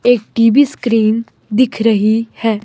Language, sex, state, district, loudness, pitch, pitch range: Hindi, male, Himachal Pradesh, Shimla, -14 LUFS, 230 Hz, 220-245 Hz